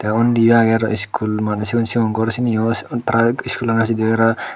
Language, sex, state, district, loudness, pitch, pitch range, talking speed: Chakma, male, Tripura, Dhalai, -17 LUFS, 115 Hz, 110-115 Hz, 170 wpm